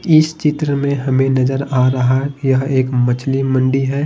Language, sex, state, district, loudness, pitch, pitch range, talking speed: Hindi, male, Bihar, Patna, -16 LUFS, 135 Hz, 130-140 Hz, 205 wpm